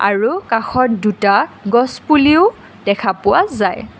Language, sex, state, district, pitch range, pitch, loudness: Assamese, female, Assam, Kamrup Metropolitan, 200-255 Hz, 220 Hz, -15 LUFS